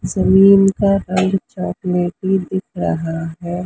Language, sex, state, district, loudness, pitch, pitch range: Hindi, male, Maharashtra, Mumbai Suburban, -16 LUFS, 185 Hz, 175-195 Hz